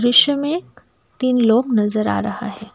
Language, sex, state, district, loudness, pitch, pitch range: Hindi, female, Assam, Kamrup Metropolitan, -17 LUFS, 245 Hz, 230-285 Hz